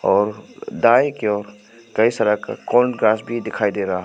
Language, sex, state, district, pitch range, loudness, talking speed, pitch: Hindi, male, Arunachal Pradesh, Papum Pare, 105-115 Hz, -19 LUFS, 165 wpm, 110 Hz